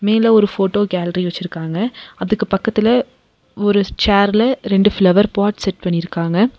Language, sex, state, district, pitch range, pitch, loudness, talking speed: Tamil, female, Tamil Nadu, Nilgiris, 185-215 Hz, 205 Hz, -16 LUFS, 130 wpm